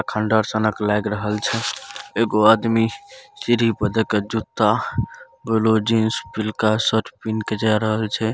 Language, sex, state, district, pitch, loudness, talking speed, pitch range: Maithili, male, Bihar, Saharsa, 110 Hz, -20 LUFS, 135 wpm, 110-115 Hz